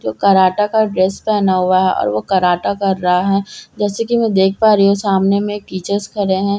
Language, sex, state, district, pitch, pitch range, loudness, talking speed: Hindi, female, Bihar, Katihar, 195 Hz, 185-205 Hz, -15 LUFS, 245 wpm